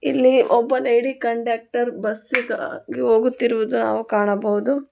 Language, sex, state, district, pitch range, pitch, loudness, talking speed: Kannada, female, Karnataka, Bangalore, 215-250 Hz, 235 Hz, -20 LUFS, 95 wpm